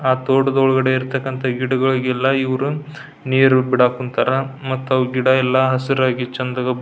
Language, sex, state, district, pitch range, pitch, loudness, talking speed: Kannada, male, Karnataka, Belgaum, 130-135 Hz, 130 Hz, -18 LUFS, 125 wpm